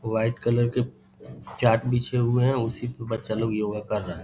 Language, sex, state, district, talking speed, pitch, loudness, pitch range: Hindi, male, Bihar, Saharsa, 210 wpm, 115 Hz, -25 LUFS, 110-120 Hz